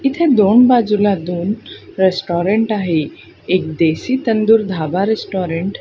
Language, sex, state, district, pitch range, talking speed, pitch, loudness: Marathi, female, Maharashtra, Gondia, 175-225 Hz, 125 wpm, 200 Hz, -15 LUFS